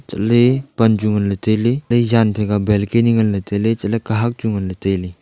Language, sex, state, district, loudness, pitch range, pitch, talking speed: Wancho, male, Arunachal Pradesh, Longding, -17 LUFS, 105-115 Hz, 110 Hz, 185 wpm